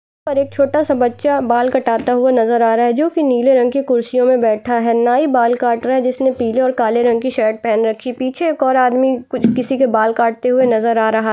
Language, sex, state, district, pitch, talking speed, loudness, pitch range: Hindi, female, Chhattisgarh, Jashpur, 250 Hz, 245 wpm, -15 LUFS, 235-260 Hz